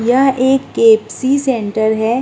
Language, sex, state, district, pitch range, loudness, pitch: Hindi, female, Uttar Pradesh, Muzaffarnagar, 225-270 Hz, -14 LUFS, 260 Hz